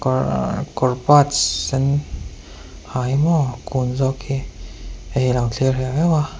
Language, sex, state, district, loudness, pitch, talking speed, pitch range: Mizo, male, Mizoram, Aizawl, -19 LUFS, 130 Hz, 130 wpm, 125-140 Hz